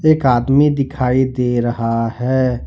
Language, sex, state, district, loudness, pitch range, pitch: Hindi, male, Jharkhand, Ranchi, -16 LUFS, 120-135 Hz, 130 Hz